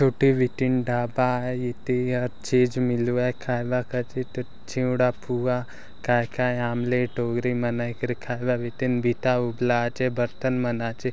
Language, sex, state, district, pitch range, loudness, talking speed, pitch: Halbi, male, Chhattisgarh, Bastar, 120-125 Hz, -25 LUFS, 140 wpm, 125 Hz